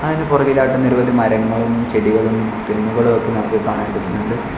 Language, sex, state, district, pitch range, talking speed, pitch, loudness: Malayalam, male, Kerala, Kollam, 110-130 Hz, 145 wpm, 115 Hz, -16 LUFS